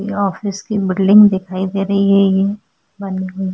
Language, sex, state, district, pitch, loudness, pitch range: Hindi, female, Uttarakhand, Tehri Garhwal, 195 Hz, -15 LUFS, 190-200 Hz